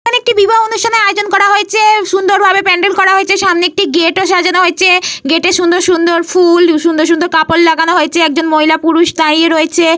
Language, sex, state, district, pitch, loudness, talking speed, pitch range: Bengali, female, Jharkhand, Jamtara, 355 Hz, -9 LUFS, 205 wpm, 330-390 Hz